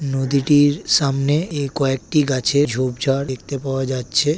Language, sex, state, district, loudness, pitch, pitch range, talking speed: Bengali, female, West Bengal, Kolkata, -19 LUFS, 140 Hz, 135-145 Hz, 125 wpm